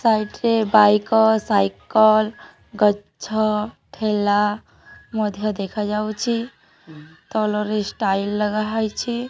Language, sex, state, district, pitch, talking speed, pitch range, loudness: Odia, female, Odisha, Nuapada, 215 Hz, 85 wpm, 205-220 Hz, -20 LUFS